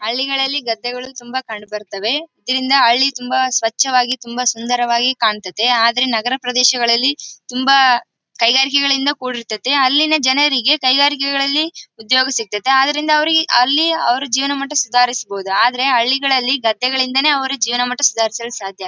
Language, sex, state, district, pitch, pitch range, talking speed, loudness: Kannada, female, Karnataka, Bellary, 255 Hz, 235-275 Hz, 120 wpm, -15 LUFS